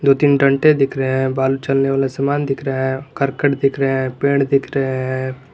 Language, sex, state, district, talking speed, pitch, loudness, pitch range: Hindi, male, Jharkhand, Garhwa, 230 wpm, 135 Hz, -17 LUFS, 130-140 Hz